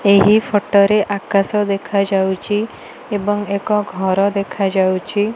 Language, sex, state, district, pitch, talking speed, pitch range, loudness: Odia, female, Odisha, Malkangiri, 200 Hz, 125 wpm, 195-210 Hz, -17 LUFS